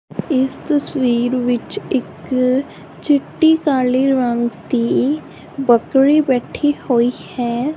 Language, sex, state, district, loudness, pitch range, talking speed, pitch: Punjabi, female, Punjab, Kapurthala, -17 LUFS, 245-290 Hz, 85 wpm, 260 Hz